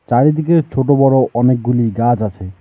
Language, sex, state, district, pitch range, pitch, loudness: Bengali, male, West Bengal, Alipurduar, 120-140 Hz, 125 Hz, -14 LUFS